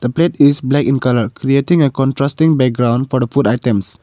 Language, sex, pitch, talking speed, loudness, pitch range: English, male, 135 Hz, 195 wpm, -14 LUFS, 125-140 Hz